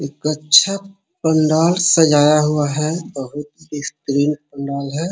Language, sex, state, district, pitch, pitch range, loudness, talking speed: Hindi, male, Bihar, Jahanabad, 150 Hz, 145-165 Hz, -16 LUFS, 115 wpm